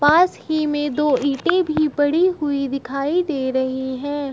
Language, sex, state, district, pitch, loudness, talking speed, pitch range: Hindi, female, Uttar Pradesh, Shamli, 290 Hz, -20 LUFS, 165 wpm, 275-310 Hz